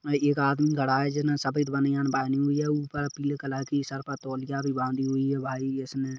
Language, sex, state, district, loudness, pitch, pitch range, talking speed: Hindi, male, Chhattisgarh, Kabirdham, -28 LUFS, 140 Hz, 135-145 Hz, 235 wpm